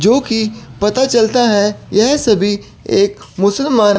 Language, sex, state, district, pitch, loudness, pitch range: Hindi, male, Chandigarh, Chandigarh, 215 Hz, -14 LUFS, 205-235 Hz